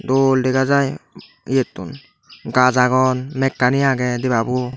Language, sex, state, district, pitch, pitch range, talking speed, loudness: Chakma, male, Tripura, Dhalai, 130 Hz, 125-135 Hz, 115 wpm, -18 LUFS